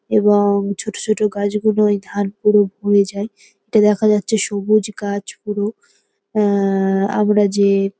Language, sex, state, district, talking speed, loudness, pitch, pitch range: Bengali, female, West Bengal, Kolkata, 135 wpm, -17 LUFS, 205 Hz, 200-210 Hz